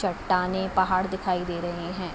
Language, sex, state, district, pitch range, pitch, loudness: Hindi, female, Uttar Pradesh, Jalaun, 180-190 Hz, 185 Hz, -26 LUFS